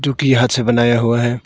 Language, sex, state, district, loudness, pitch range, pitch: Hindi, male, Arunachal Pradesh, Longding, -15 LUFS, 120-130 Hz, 120 Hz